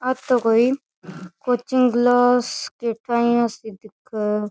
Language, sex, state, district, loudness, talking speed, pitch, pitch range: Rajasthani, female, Rajasthan, Churu, -20 LUFS, 105 wpm, 235 Hz, 215-250 Hz